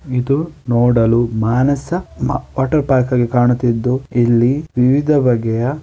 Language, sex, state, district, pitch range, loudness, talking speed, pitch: Kannada, male, Karnataka, Dakshina Kannada, 120-140 Hz, -15 LUFS, 115 wpm, 125 Hz